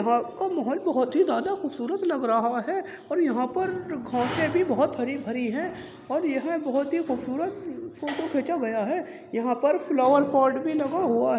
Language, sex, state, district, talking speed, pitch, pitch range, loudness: Hindi, male, Uttar Pradesh, Jyotiba Phule Nagar, 180 wpm, 300 Hz, 260-340 Hz, -26 LUFS